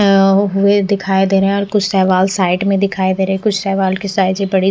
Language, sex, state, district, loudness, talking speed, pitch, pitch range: Hindi, female, Bihar, West Champaran, -14 LUFS, 255 wpm, 195 Hz, 190-200 Hz